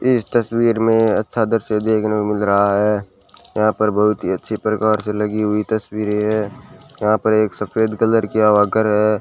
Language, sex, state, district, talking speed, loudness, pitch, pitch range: Hindi, male, Rajasthan, Bikaner, 190 wpm, -17 LUFS, 110 Hz, 105-110 Hz